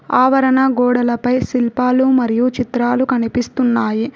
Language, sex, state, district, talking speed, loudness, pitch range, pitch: Telugu, female, Telangana, Hyderabad, 85 wpm, -15 LUFS, 240-255 Hz, 250 Hz